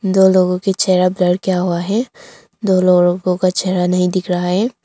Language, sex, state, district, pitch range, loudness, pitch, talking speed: Hindi, female, Arunachal Pradesh, Longding, 180-190 Hz, -15 LUFS, 185 Hz, 200 wpm